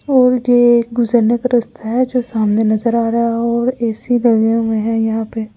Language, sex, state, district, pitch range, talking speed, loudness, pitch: Hindi, female, Delhi, New Delhi, 225-245 Hz, 225 wpm, -15 LUFS, 235 Hz